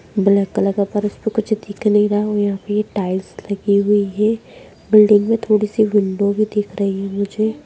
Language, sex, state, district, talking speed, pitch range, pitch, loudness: Hindi, female, Bihar, Muzaffarpur, 220 wpm, 200-215 Hz, 205 Hz, -17 LUFS